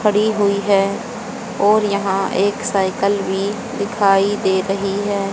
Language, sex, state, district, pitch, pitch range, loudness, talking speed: Hindi, female, Haryana, Charkhi Dadri, 200 Hz, 195-210 Hz, -18 LUFS, 135 wpm